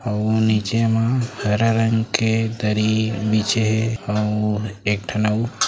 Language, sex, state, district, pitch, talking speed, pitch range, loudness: Chhattisgarhi, male, Chhattisgarh, Raigarh, 110 Hz, 135 wpm, 105-115 Hz, -20 LUFS